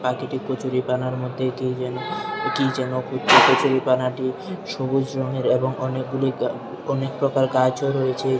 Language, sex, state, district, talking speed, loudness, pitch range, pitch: Bengali, male, Tripura, Unakoti, 120 wpm, -22 LUFS, 130-135 Hz, 130 Hz